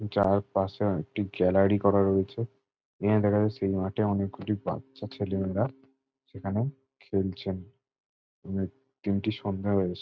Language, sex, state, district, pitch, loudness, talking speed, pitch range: Bengali, male, West Bengal, Jalpaiguri, 100 Hz, -29 LUFS, 145 wpm, 95-110 Hz